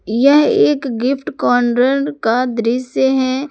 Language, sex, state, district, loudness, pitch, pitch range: Hindi, female, Jharkhand, Ranchi, -15 LUFS, 255 Hz, 245-275 Hz